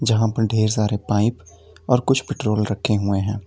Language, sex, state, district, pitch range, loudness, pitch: Hindi, male, Uttar Pradesh, Lalitpur, 105-115 Hz, -20 LUFS, 105 Hz